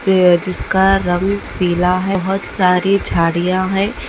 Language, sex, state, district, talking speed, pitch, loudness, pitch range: Hindi, female, Bihar, Jamui, 130 wpm, 185 Hz, -15 LUFS, 180-195 Hz